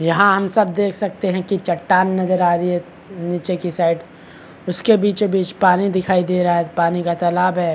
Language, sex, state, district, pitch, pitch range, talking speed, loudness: Hindi, male, Chhattisgarh, Bastar, 180 Hz, 175-195 Hz, 210 wpm, -18 LUFS